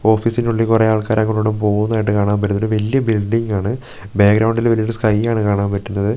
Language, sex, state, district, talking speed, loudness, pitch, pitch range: Malayalam, male, Kerala, Wayanad, 225 wpm, -17 LUFS, 110 Hz, 105-115 Hz